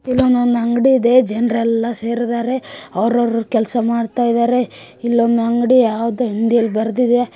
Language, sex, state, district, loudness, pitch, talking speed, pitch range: Kannada, female, Karnataka, Bijapur, -16 LUFS, 235 Hz, 105 wpm, 230-245 Hz